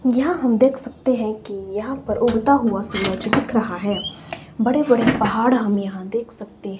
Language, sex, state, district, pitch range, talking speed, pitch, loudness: Hindi, female, Himachal Pradesh, Shimla, 205-255 Hz, 185 wpm, 230 Hz, -20 LUFS